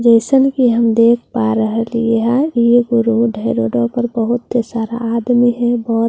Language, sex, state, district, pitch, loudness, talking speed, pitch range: Hindi, female, Bihar, Katihar, 235 Hz, -15 LUFS, 215 wpm, 225-240 Hz